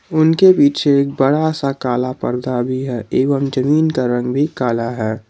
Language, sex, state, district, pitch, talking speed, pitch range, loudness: Hindi, male, Jharkhand, Garhwa, 135 Hz, 180 wpm, 125-145 Hz, -16 LUFS